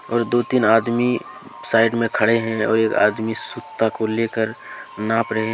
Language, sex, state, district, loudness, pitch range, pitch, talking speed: Hindi, male, Jharkhand, Deoghar, -20 LUFS, 110-115 Hz, 115 Hz, 175 wpm